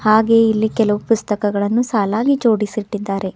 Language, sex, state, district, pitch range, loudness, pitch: Kannada, female, Karnataka, Bidar, 205-225 Hz, -17 LUFS, 215 Hz